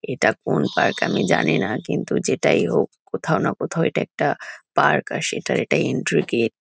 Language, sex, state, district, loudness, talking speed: Bengali, female, West Bengal, Kolkata, -21 LUFS, 190 wpm